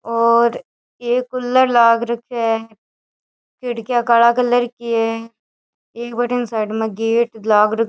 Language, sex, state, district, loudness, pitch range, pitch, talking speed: Rajasthani, female, Rajasthan, Churu, -17 LUFS, 225-245 Hz, 235 Hz, 135 wpm